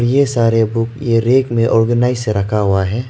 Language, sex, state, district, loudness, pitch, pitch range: Hindi, male, Arunachal Pradesh, Lower Dibang Valley, -15 LUFS, 115 Hz, 110-125 Hz